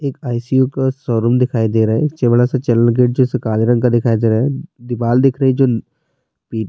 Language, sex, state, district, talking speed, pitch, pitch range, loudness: Urdu, male, Bihar, Saharsa, 180 wpm, 120 Hz, 115-130 Hz, -15 LUFS